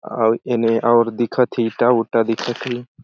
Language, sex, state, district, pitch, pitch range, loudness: Awadhi, male, Chhattisgarh, Balrampur, 120 Hz, 115-125 Hz, -18 LUFS